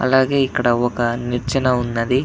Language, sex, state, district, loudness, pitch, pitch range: Telugu, male, Andhra Pradesh, Anantapur, -19 LUFS, 125 Hz, 120-130 Hz